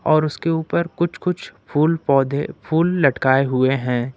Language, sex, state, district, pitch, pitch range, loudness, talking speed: Hindi, male, Jharkhand, Ranchi, 155 Hz, 135-165 Hz, -19 LUFS, 160 wpm